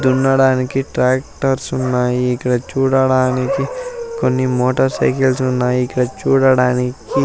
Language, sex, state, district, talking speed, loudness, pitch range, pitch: Telugu, male, Andhra Pradesh, Sri Satya Sai, 90 wpm, -16 LUFS, 125-135 Hz, 130 Hz